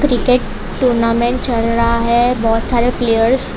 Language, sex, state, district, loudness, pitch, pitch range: Hindi, female, Gujarat, Valsad, -15 LUFS, 240 Hz, 230-250 Hz